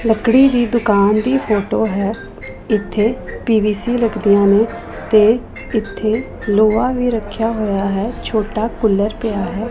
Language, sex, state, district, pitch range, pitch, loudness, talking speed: Punjabi, female, Punjab, Pathankot, 205-230 Hz, 220 Hz, -16 LUFS, 135 wpm